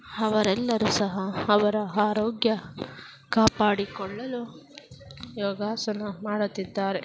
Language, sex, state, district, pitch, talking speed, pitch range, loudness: Kannada, female, Karnataka, Chamarajanagar, 210 Hz, 70 wpm, 200-215 Hz, -26 LUFS